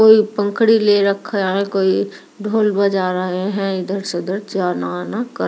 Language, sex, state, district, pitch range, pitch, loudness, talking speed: Hindi, female, Delhi, New Delhi, 185-210 Hz, 195 Hz, -18 LUFS, 185 wpm